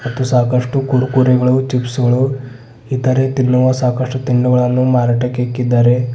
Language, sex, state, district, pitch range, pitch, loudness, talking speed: Kannada, male, Karnataka, Bidar, 125-130 Hz, 125 Hz, -14 LUFS, 115 wpm